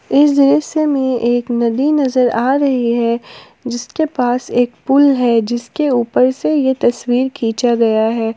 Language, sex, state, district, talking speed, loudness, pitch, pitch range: Hindi, female, Jharkhand, Palamu, 160 wpm, -15 LUFS, 250 Hz, 235-275 Hz